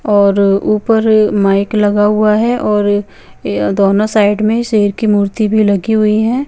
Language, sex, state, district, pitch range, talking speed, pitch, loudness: Hindi, female, Chandigarh, Chandigarh, 205-220 Hz, 155 wpm, 210 Hz, -12 LUFS